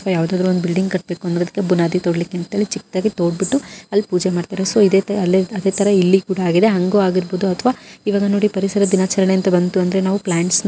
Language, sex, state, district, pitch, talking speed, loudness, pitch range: Kannada, female, Karnataka, Gulbarga, 190 Hz, 180 wpm, -17 LUFS, 180-200 Hz